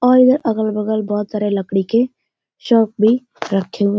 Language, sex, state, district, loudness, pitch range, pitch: Hindi, female, Bihar, Gopalganj, -17 LUFS, 205-235 Hz, 220 Hz